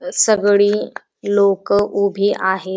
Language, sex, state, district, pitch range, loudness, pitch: Marathi, female, Maharashtra, Dhule, 195-205 Hz, -16 LUFS, 200 Hz